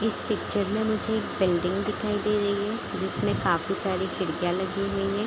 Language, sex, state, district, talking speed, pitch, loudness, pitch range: Hindi, female, Bihar, Kishanganj, 195 wpm, 200 Hz, -27 LUFS, 185-210 Hz